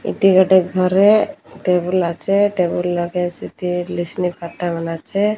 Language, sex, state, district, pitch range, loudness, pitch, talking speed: Odia, female, Odisha, Malkangiri, 175-190 Hz, -18 LUFS, 180 Hz, 135 wpm